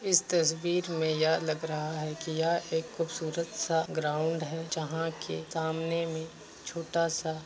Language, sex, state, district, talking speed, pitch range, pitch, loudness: Hindi, male, Uttar Pradesh, Varanasi, 170 wpm, 160-165 Hz, 160 Hz, -31 LUFS